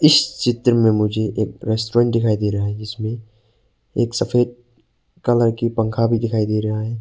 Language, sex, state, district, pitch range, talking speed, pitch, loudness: Hindi, male, Arunachal Pradesh, Papum Pare, 110-120 Hz, 180 wpm, 115 Hz, -19 LUFS